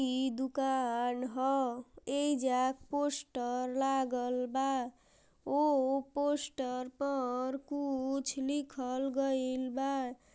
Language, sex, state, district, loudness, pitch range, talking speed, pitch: Bhojpuri, female, Uttar Pradesh, Gorakhpur, -34 LUFS, 255-275 Hz, 80 wpm, 265 Hz